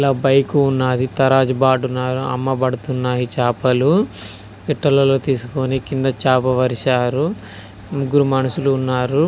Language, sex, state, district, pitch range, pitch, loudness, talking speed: Telugu, male, Telangana, Karimnagar, 125-135 Hz, 130 Hz, -17 LUFS, 95 wpm